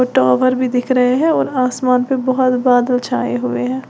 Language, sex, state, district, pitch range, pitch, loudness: Hindi, female, Uttar Pradesh, Lalitpur, 245-255 Hz, 250 Hz, -15 LUFS